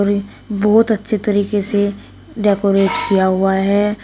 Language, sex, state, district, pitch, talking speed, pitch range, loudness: Hindi, female, Uttar Pradesh, Shamli, 205 Hz, 150 wpm, 195-210 Hz, -16 LUFS